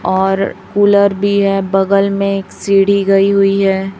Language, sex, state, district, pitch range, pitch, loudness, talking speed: Hindi, female, Chhattisgarh, Raipur, 195-200 Hz, 195 Hz, -13 LUFS, 165 wpm